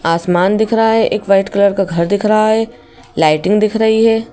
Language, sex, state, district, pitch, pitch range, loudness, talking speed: Hindi, female, Madhya Pradesh, Bhopal, 210 Hz, 185-220 Hz, -13 LUFS, 220 wpm